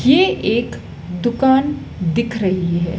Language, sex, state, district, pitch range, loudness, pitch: Hindi, female, Madhya Pradesh, Dhar, 175-265 Hz, -17 LUFS, 220 Hz